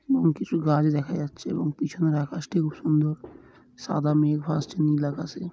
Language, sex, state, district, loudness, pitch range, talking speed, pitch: Bengali, male, West Bengal, Jhargram, -25 LUFS, 150-160 Hz, 160 wpm, 150 Hz